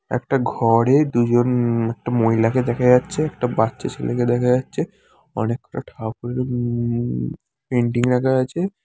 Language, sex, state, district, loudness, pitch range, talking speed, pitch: Bengali, male, West Bengal, Jhargram, -20 LUFS, 115-125 Hz, 120 wpm, 120 Hz